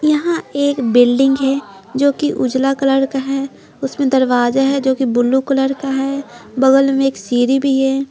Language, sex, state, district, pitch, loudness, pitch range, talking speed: Hindi, female, Bihar, Patna, 270 Hz, -15 LUFS, 260-275 Hz, 170 wpm